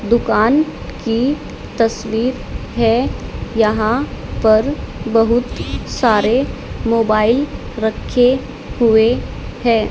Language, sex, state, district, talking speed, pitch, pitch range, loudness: Hindi, female, Haryana, Charkhi Dadri, 75 wpm, 230 Hz, 220-245 Hz, -17 LUFS